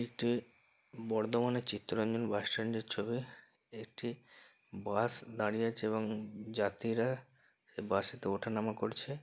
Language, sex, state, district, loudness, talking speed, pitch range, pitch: Bengali, male, West Bengal, North 24 Parganas, -37 LUFS, 105 wpm, 110-120 Hz, 115 Hz